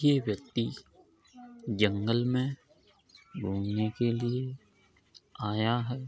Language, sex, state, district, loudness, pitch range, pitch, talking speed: Hindi, male, Uttar Pradesh, Jalaun, -31 LUFS, 105-130 Hz, 115 Hz, 90 wpm